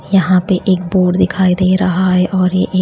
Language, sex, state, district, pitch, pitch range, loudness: Hindi, female, Maharashtra, Gondia, 185 Hz, 180-185 Hz, -13 LUFS